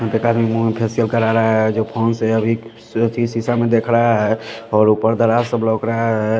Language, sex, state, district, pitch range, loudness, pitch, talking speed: Hindi, male, Punjab, Fazilka, 110-115 Hz, -17 LUFS, 115 Hz, 245 wpm